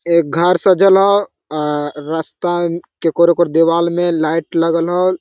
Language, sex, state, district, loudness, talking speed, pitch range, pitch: Hindi, male, Jharkhand, Sahebganj, -15 LUFS, 150 wpm, 160-175 Hz, 170 Hz